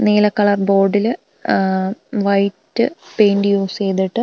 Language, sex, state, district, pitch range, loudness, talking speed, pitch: Malayalam, female, Kerala, Wayanad, 195-210 Hz, -17 LUFS, 125 wpm, 200 Hz